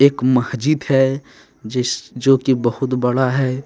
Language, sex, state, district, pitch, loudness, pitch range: Hindi, male, Jharkhand, Deoghar, 130 Hz, -18 LUFS, 125-135 Hz